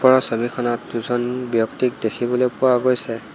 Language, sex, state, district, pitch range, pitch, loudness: Assamese, male, Assam, Hailakandi, 120-125 Hz, 125 Hz, -20 LUFS